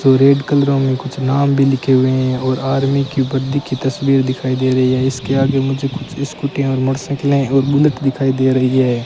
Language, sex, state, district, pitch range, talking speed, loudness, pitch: Hindi, male, Rajasthan, Bikaner, 130-140 Hz, 225 wpm, -16 LUFS, 135 Hz